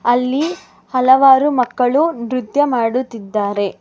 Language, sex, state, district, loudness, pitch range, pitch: Kannada, female, Karnataka, Bangalore, -15 LUFS, 235-270 Hz, 255 Hz